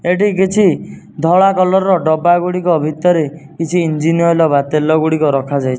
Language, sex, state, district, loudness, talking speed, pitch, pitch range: Odia, male, Odisha, Nuapada, -13 LUFS, 155 wpm, 165 Hz, 155-180 Hz